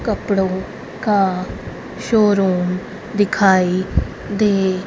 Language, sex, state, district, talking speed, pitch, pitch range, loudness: Hindi, female, Haryana, Rohtak, 60 wpm, 195 Hz, 185-210 Hz, -18 LUFS